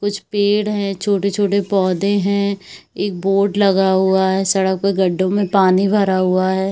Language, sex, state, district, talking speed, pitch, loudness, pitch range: Hindi, female, Chhattisgarh, Bilaspur, 170 wpm, 195 Hz, -16 LUFS, 190-200 Hz